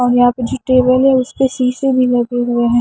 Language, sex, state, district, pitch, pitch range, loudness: Hindi, female, Himachal Pradesh, Shimla, 250 Hz, 245-255 Hz, -14 LUFS